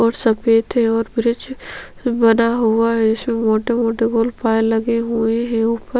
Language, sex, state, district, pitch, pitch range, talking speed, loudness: Hindi, female, Chhattisgarh, Sukma, 230 Hz, 225-235 Hz, 190 wpm, -17 LUFS